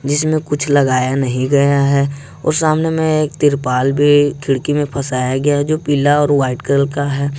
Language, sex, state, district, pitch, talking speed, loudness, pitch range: Hindi, male, Jharkhand, Ranchi, 140 Hz, 195 wpm, -15 LUFS, 135-145 Hz